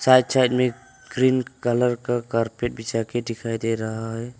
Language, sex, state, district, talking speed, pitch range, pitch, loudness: Hindi, male, Arunachal Pradesh, Longding, 180 wpm, 115-125 Hz, 120 Hz, -23 LUFS